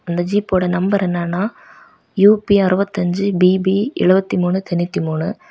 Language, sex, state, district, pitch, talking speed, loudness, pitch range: Tamil, female, Tamil Nadu, Kanyakumari, 190 Hz, 130 wpm, -17 LUFS, 180-200 Hz